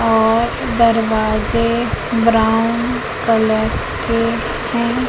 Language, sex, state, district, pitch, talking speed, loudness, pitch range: Hindi, female, Madhya Pradesh, Katni, 230 Hz, 70 wpm, -16 LUFS, 225-235 Hz